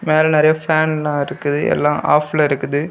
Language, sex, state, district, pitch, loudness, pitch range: Tamil, male, Tamil Nadu, Kanyakumari, 150 Hz, -16 LUFS, 145-155 Hz